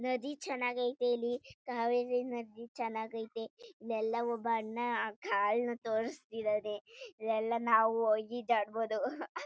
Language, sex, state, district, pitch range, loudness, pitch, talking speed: Kannada, female, Karnataka, Chamarajanagar, 225-245 Hz, -35 LUFS, 235 Hz, 100 wpm